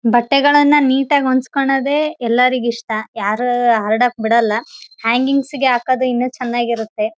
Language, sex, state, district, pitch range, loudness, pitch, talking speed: Kannada, female, Karnataka, Raichur, 235-270 Hz, -16 LUFS, 245 Hz, 75 wpm